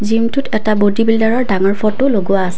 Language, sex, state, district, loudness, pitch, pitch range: Assamese, female, Assam, Kamrup Metropolitan, -14 LUFS, 215 Hz, 200-230 Hz